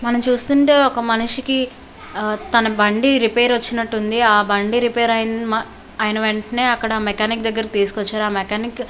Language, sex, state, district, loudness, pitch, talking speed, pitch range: Telugu, female, Andhra Pradesh, Visakhapatnam, -17 LUFS, 225 Hz, 135 wpm, 215-240 Hz